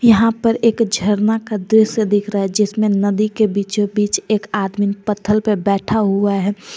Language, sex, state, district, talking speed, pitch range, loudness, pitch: Hindi, female, Jharkhand, Garhwa, 185 wpm, 200-220 Hz, -17 LUFS, 210 Hz